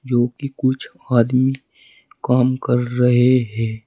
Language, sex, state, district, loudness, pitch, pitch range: Hindi, male, Uttar Pradesh, Saharanpur, -18 LUFS, 125 Hz, 120-130 Hz